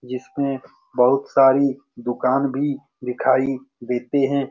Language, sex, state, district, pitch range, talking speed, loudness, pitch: Hindi, male, Bihar, Saran, 125-140 Hz, 105 wpm, -21 LUFS, 135 Hz